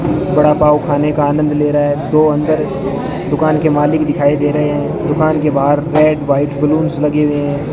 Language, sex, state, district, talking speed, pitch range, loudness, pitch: Hindi, male, Rajasthan, Bikaner, 200 wpm, 145-155 Hz, -14 LUFS, 150 Hz